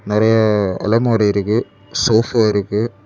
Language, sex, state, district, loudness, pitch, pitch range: Tamil, male, Tamil Nadu, Kanyakumari, -16 LUFS, 110 Hz, 105-115 Hz